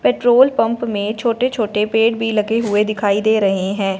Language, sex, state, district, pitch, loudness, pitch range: Hindi, female, Punjab, Fazilka, 220 Hz, -16 LUFS, 205-230 Hz